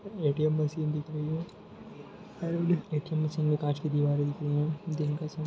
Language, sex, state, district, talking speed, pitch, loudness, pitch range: Hindi, male, Jharkhand, Jamtara, 195 wpm, 155 Hz, -30 LUFS, 150-165 Hz